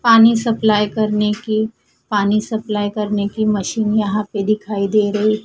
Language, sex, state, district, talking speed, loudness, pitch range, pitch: Hindi, female, Punjab, Fazilka, 155 wpm, -17 LUFS, 210-220 Hz, 215 Hz